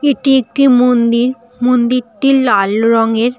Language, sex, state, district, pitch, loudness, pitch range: Bengali, female, West Bengal, Jalpaiguri, 245 Hz, -12 LUFS, 235-260 Hz